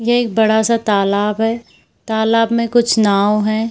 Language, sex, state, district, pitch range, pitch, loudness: Hindi, female, Bihar, Purnia, 210-230 Hz, 220 Hz, -15 LUFS